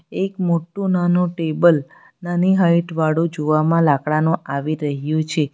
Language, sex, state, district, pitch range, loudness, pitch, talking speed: Gujarati, female, Gujarat, Valsad, 155-175 Hz, -19 LUFS, 165 Hz, 130 wpm